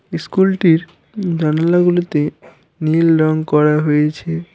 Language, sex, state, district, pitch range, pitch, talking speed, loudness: Bengali, male, West Bengal, Alipurduar, 155-175 Hz, 160 Hz, 80 wpm, -15 LUFS